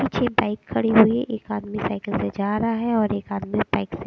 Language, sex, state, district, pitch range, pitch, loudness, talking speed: Hindi, female, Bihar, West Champaran, 195-225 Hz, 210 Hz, -23 LUFS, 265 wpm